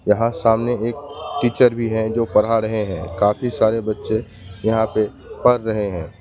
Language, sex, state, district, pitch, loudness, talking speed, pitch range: Hindi, male, West Bengal, Alipurduar, 110 Hz, -19 LUFS, 175 wpm, 105-115 Hz